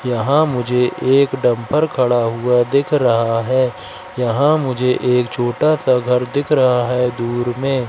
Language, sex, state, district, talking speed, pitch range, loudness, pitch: Hindi, male, Madhya Pradesh, Katni, 150 wpm, 120-140 Hz, -16 LUFS, 125 Hz